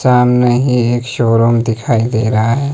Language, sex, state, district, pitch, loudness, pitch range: Hindi, male, Himachal Pradesh, Shimla, 120 Hz, -13 LUFS, 115-125 Hz